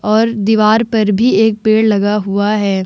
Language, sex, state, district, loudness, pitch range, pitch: Hindi, female, Bihar, Vaishali, -12 LUFS, 205-220 Hz, 215 Hz